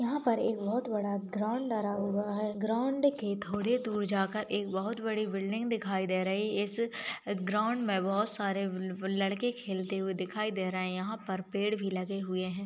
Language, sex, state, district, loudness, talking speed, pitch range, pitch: Hindi, female, Bihar, Begusarai, -33 LUFS, 195 wpm, 195-220 Hz, 205 Hz